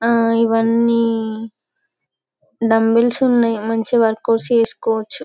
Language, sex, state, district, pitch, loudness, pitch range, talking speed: Telugu, female, Telangana, Karimnagar, 230 Hz, -16 LUFS, 225-235 Hz, 80 wpm